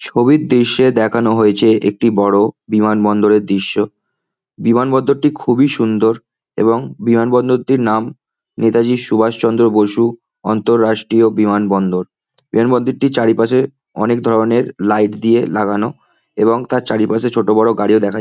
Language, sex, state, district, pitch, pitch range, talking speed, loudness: Bengali, male, West Bengal, Kolkata, 115 Hz, 105-120 Hz, 115 wpm, -14 LUFS